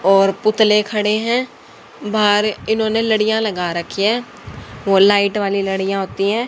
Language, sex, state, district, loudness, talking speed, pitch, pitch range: Hindi, female, Haryana, Charkhi Dadri, -17 LUFS, 150 wpm, 210 Hz, 195-220 Hz